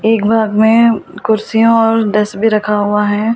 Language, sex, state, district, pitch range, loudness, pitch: Hindi, female, Delhi, New Delhi, 210-225 Hz, -12 LUFS, 220 Hz